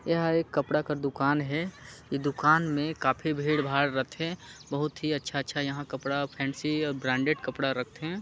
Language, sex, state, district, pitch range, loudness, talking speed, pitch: Chhattisgarhi, male, Chhattisgarh, Sarguja, 140-155 Hz, -29 LUFS, 155 wpm, 145 Hz